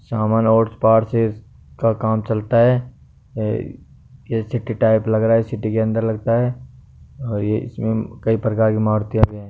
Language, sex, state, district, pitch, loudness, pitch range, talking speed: Hindi, male, Rajasthan, Nagaur, 110 Hz, -19 LUFS, 110-115 Hz, 170 wpm